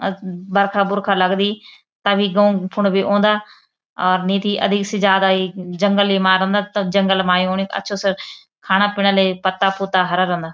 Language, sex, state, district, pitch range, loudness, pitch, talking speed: Garhwali, female, Uttarakhand, Uttarkashi, 185-200 Hz, -17 LUFS, 195 Hz, 190 wpm